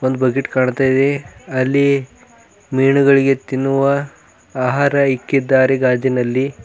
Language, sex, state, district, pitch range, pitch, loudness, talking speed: Kannada, male, Karnataka, Bidar, 130-140 Hz, 135 Hz, -16 LUFS, 80 wpm